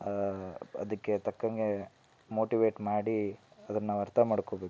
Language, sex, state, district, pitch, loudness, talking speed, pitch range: Kannada, male, Karnataka, Shimoga, 105 Hz, -33 LUFS, 100 wpm, 100-110 Hz